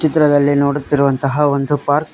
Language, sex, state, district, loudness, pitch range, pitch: Kannada, male, Karnataka, Koppal, -15 LUFS, 140-150 Hz, 145 Hz